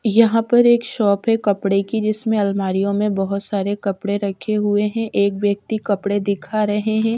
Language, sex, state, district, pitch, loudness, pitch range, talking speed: Hindi, female, Chhattisgarh, Raipur, 205 Hz, -19 LUFS, 200-220 Hz, 185 wpm